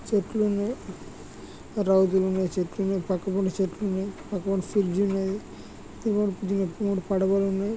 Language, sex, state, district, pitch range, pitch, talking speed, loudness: Telugu, male, Andhra Pradesh, Guntur, 190-200 Hz, 195 Hz, 115 wpm, -26 LUFS